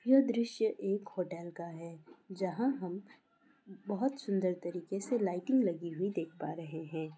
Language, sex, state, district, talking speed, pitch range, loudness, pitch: Hindi, female, Bihar, Kishanganj, 160 wpm, 170-235 Hz, -35 LUFS, 195 Hz